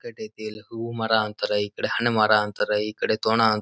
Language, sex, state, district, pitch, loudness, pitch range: Kannada, male, Karnataka, Dharwad, 110 Hz, -24 LUFS, 105-115 Hz